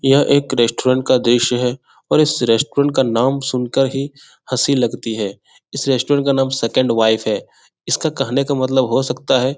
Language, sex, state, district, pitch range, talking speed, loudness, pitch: Hindi, male, Bihar, Jahanabad, 120-140 Hz, 200 wpm, -17 LUFS, 130 Hz